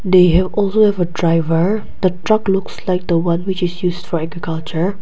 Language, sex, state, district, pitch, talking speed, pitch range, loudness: English, female, Nagaland, Kohima, 180 Hz, 215 wpm, 170-190 Hz, -17 LUFS